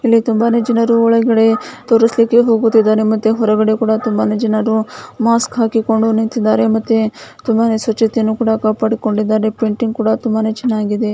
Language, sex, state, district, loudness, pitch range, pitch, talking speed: Kannada, female, Karnataka, Bijapur, -14 LUFS, 220-230 Hz, 225 Hz, 125 wpm